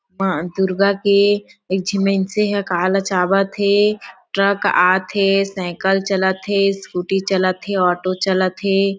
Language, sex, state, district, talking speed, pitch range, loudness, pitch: Chhattisgarhi, female, Chhattisgarh, Sarguja, 145 wpm, 185-200 Hz, -18 LUFS, 195 Hz